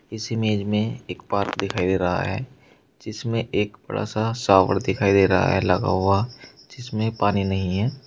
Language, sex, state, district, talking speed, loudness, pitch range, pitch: Hindi, male, Uttar Pradesh, Shamli, 180 wpm, -22 LUFS, 95-110 Hz, 100 Hz